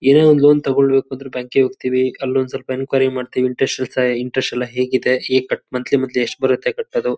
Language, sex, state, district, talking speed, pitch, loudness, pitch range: Kannada, male, Karnataka, Shimoga, 190 wpm, 130 Hz, -17 LUFS, 125-135 Hz